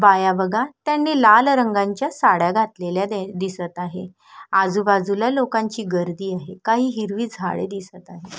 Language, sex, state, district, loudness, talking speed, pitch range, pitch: Marathi, female, Maharashtra, Solapur, -20 LUFS, 130 wpm, 185-225 Hz, 200 Hz